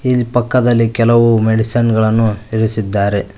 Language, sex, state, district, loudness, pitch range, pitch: Kannada, male, Karnataka, Koppal, -13 LUFS, 110-120 Hz, 115 Hz